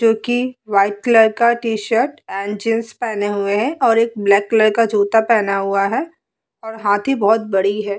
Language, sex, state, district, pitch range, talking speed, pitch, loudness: Hindi, female, Uttar Pradesh, Muzaffarnagar, 205-230 Hz, 190 wpm, 220 Hz, -17 LUFS